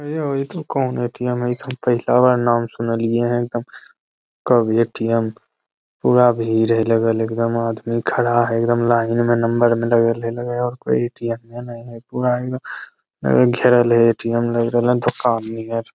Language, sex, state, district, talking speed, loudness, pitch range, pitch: Magahi, male, Bihar, Lakhisarai, 190 wpm, -18 LUFS, 115-120 Hz, 120 Hz